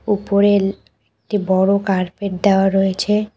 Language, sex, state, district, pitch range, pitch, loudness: Bengali, female, West Bengal, Cooch Behar, 195-205 Hz, 200 Hz, -17 LUFS